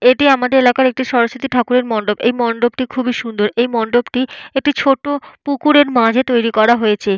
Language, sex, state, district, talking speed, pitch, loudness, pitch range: Bengali, female, Jharkhand, Jamtara, 165 wpm, 250 Hz, -15 LUFS, 230-265 Hz